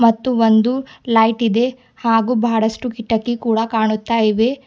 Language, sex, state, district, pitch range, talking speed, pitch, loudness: Kannada, female, Karnataka, Bidar, 225-245 Hz, 130 wpm, 230 Hz, -17 LUFS